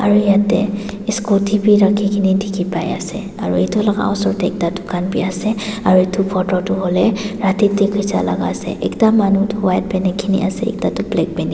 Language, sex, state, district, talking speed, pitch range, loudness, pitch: Nagamese, female, Nagaland, Dimapur, 195 wpm, 185-205 Hz, -17 LUFS, 200 Hz